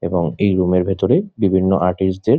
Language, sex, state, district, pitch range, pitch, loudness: Bengali, male, West Bengal, Jhargram, 90-100 Hz, 95 Hz, -17 LUFS